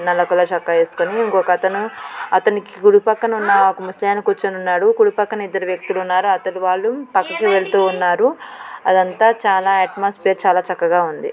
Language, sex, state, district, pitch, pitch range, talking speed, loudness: Telugu, female, Andhra Pradesh, Guntur, 190 Hz, 185-210 Hz, 160 wpm, -17 LUFS